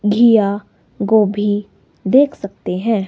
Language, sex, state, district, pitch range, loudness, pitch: Hindi, female, Himachal Pradesh, Shimla, 200-225 Hz, -15 LUFS, 205 Hz